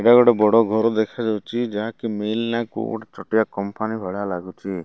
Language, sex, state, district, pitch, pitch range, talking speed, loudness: Odia, male, Odisha, Malkangiri, 110 Hz, 100-115 Hz, 175 wpm, -21 LUFS